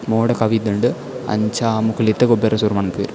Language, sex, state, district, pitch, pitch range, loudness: Tulu, male, Karnataka, Dakshina Kannada, 110 Hz, 105-115 Hz, -18 LUFS